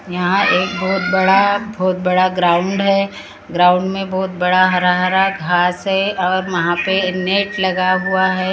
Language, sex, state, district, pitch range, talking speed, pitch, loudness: Hindi, female, Maharashtra, Gondia, 180-195 Hz, 160 wpm, 185 Hz, -16 LUFS